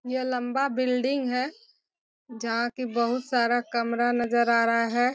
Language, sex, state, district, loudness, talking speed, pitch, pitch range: Hindi, female, Bihar, Bhagalpur, -26 LUFS, 150 wpm, 245 Hz, 235-255 Hz